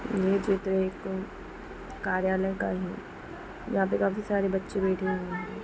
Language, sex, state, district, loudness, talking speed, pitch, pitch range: Hindi, female, Bihar, East Champaran, -29 LUFS, 160 wpm, 190 Hz, 190-200 Hz